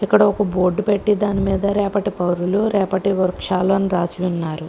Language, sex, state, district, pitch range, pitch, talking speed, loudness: Telugu, female, Andhra Pradesh, Krishna, 180-205 Hz, 195 Hz, 165 wpm, -19 LUFS